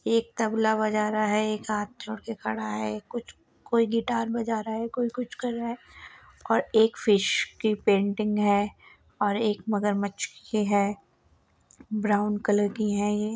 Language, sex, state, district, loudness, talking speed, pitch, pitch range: Hindi, female, Uttar Pradesh, Muzaffarnagar, -27 LUFS, 175 wpm, 215 Hz, 205-230 Hz